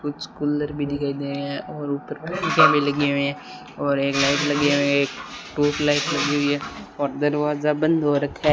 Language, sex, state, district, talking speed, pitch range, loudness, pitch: Hindi, male, Rajasthan, Bikaner, 210 wpm, 140-150 Hz, -22 LUFS, 145 Hz